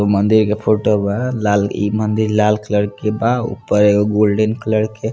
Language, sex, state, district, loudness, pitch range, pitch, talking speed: Hindi, male, Bihar, East Champaran, -16 LUFS, 105-110 Hz, 105 Hz, 185 wpm